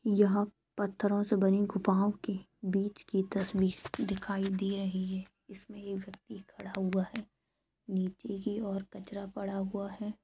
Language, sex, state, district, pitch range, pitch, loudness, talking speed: Hindi, female, Jharkhand, Sahebganj, 195-205 Hz, 200 Hz, -34 LUFS, 150 wpm